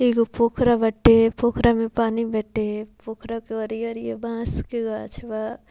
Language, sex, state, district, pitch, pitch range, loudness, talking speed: Bhojpuri, female, Bihar, Muzaffarpur, 225 Hz, 220-235 Hz, -22 LUFS, 145 wpm